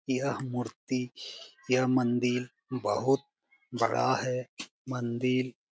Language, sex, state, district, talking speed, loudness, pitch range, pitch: Hindi, male, Bihar, Jamui, 85 wpm, -30 LUFS, 125-130 Hz, 125 Hz